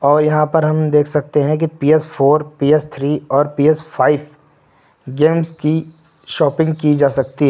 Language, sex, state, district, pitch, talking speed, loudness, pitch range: Hindi, male, Uttar Pradesh, Lucknow, 150 Hz, 175 wpm, -15 LUFS, 145-155 Hz